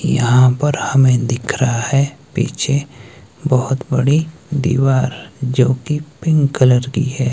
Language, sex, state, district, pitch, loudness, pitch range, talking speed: Hindi, male, Himachal Pradesh, Shimla, 135 Hz, -16 LUFS, 130-145 Hz, 130 wpm